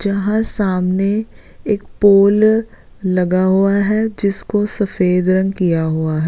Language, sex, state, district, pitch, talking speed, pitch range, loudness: Hindi, female, Uttarakhand, Uttarkashi, 200 Hz, 125 wpm, 185-210 Hz, -16 LUFS